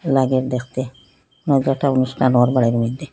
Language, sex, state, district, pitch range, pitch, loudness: Bengali, female, Assam, Hailakandi, 125-135 Hz, 130 Hz, -18 LUFS